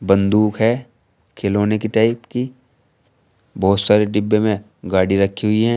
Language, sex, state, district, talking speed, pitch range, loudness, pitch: Hindi, male, Uttar Pradesh, Shamli, 145 wpm, 100-115 Hz, -18 LUFS, 105 Hz